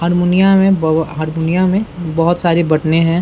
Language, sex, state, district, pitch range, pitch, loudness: Hindi, male, Bihar, Saran, 160-180 Hz, 170 Hz, -14 LUFS